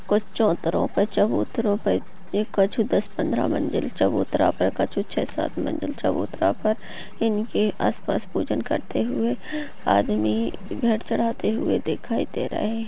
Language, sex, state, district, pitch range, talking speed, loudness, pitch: Hindi, female, Uttar Pradesh, Jyotiba Phule Nagar, 165-225 Hz, 145 wpm, -24 LUFS, 210 Hz